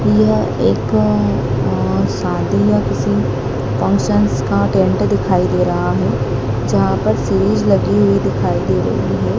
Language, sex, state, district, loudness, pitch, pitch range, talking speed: Hindi, female, Madhya Pradesh, Dhar, -15 LUFS, 105 Hz, 100-110 Hz, 140 wpm